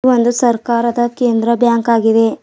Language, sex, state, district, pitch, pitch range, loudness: Kannada, female, Karnataka, Bidar, 235 Hz, 230-240 Hz, -14 LUFS